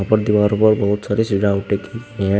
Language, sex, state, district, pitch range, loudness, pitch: Hindi, male, Uttar Pradesh, Shamli, 100-110 Hz, -17 LUFS, 105 Hz